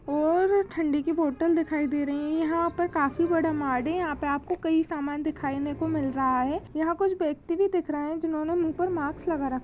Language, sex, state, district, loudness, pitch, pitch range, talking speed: Hindi, female, Chhattisgarh, Rajnandgaon, -27 LUFS, 315 Hz, 290-335 Hz, 220 wpm